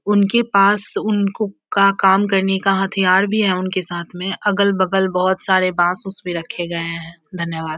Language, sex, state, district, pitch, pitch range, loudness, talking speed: Hindi, female, Bihar, Samastipur, 190 Hz, 180-200 Hz, -18 LUFS, 175 wpm